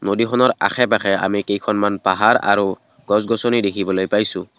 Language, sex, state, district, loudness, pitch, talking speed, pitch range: Assamese, male, Assam, Kamrup Metropolitan, -18 LUFS, 100 Hz, 145 wpm, 100-110 Hz